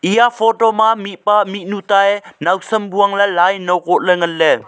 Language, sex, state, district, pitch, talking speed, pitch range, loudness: Wancho, male, Arunachal Pradesh, Longding, 200 Hz, 165 wpm, 180-210 Hz, -14 LUFS